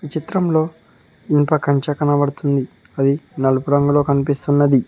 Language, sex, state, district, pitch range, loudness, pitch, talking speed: Telugu, male, Telangana, Mahabubabad, 140-150 Hz, -18 LUFS, 145 Hz, 110 wpm